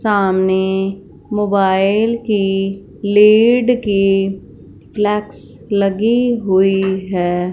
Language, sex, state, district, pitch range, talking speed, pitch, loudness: Hindi, female, Punjab, Fazilka, 190-210 Hz, 70 wpm, 195 Hz, -15 LUFS